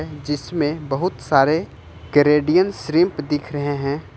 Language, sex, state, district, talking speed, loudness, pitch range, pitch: Hindi, male, Jharkhand, Ranchi, 115 wpm, -20 LUFS, 145-160 Hz, 150 Hz